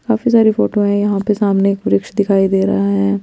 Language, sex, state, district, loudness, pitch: Hindi, female, Chandigarh, Chandigarh, -14 LUFS, 200 Hz